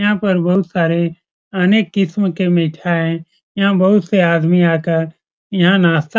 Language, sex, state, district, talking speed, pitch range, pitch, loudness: Hindi, male, Bihar, Supaul, 155 wpm, 165-195 Hz, 175 Hz, -15 LUFS